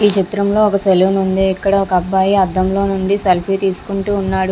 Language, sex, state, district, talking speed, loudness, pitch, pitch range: Telugu, female, Andhra Pradesh, Visakhapatnam, 200 wpm, -15 LUFS, 195 Hz, 190-200 Hz